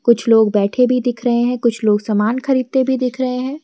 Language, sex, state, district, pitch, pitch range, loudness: Hindi, female, Jharkhand, Garhwa, 245 Hz, 225-255 Hz, -16 LUFS